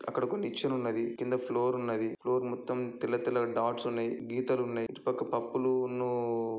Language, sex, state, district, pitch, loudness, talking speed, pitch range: Telugu, female, Andhra Pradesh, Chittoor, 120 Hz, -33 LUFS, 155 wpm, 115-125 Hz